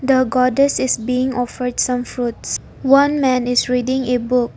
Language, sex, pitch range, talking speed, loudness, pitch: English, female, 245-260 Hz, 170 wpm, -17 LUFS, 250 Hz